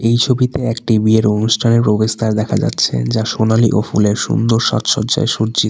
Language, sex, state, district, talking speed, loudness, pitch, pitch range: Bengali, male, West Bengal, Alipurduar, 160 wpm, -15 LUFS, 110 Hz, 110-115 Hz